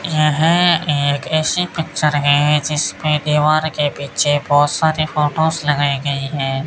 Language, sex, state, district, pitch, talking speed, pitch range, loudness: Hindi, male, Rajasthan, Bikaner, 150 Hz, 135 wpm, 145-155 Hz, -16 LUFS